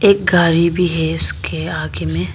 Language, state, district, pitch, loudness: Hindi, Arunachal Pradesh, Lower Dibang Valley, 160 Hz, -16 LUFS